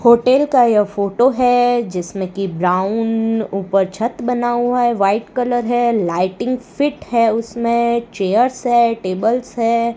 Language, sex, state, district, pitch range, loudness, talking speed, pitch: Hindi, female, Rajasthan, Bikaner, 200-245 Hz, -17 LUFS, 145 wpm, 235 Hz